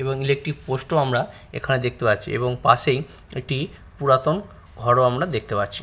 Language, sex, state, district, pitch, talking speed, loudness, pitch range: Bengali, male, West Bengal, Purulia, 130 Hz, 175 wpm, -22 LUFS, 120-140 Hz